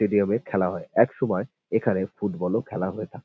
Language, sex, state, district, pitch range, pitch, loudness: Bengali, male, West Bengal, North 24 Parganas, 95-110 Hz, 100 Hz, -25 LUFS